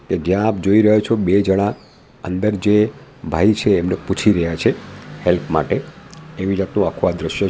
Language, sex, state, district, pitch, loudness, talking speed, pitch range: Gujarati, male, Gujarat, Valsad, 100 Hz, -18 LUFS, 185 wpm, 95-105 Hz